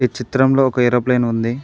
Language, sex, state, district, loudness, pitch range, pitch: Telugu, male, Telangana, Mahabubabad, -16 LUFS, 120-130 Hz, 125 Hz